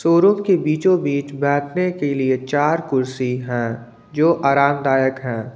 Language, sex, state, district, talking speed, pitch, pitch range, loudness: Hindi, male, Jharkhand, Ranchi, 130 wpm, 140 Hz, 130-160 Hz, -19 LUFS